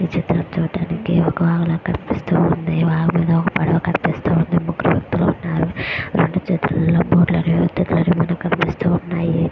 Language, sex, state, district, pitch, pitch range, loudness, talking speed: Telugu, female, Andhra Pradesh, Visakhapatnam, 170 Hz, 165-175 Hz, -18 LUFS, 125 wpm